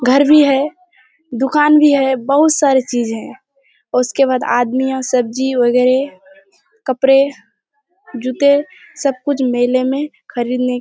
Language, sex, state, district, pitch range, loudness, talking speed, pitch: Hindi, female, Bihar, Kishanganj, 250-285 Hz, -14 LUFS, 135 wpm, 265 Hz